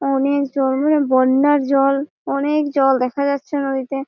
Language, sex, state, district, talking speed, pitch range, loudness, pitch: Bengali, female, West Bengal, Malda, 135 wpm, 270-285 Hz, -17 LUFS, 275 Hz